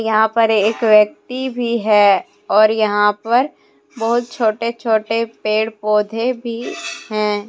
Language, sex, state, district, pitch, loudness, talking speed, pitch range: Hindi, female, Jharkhand, Deoghar, 220 Hz, -17 LUFS, 130 wpm, 215-235 Hz